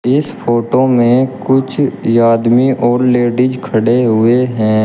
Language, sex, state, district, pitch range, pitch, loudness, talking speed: Hindi, male, Uttar Pradesh, Shamli, 115-130 Hz, 120 Hz, -12 LUFS, 125 wpm